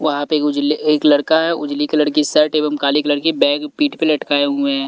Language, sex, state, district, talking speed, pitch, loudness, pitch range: Hindi, male, Delhi, New Delhi, 245 wpm, 150 Hz, -16 LUFS, 145-155 Hz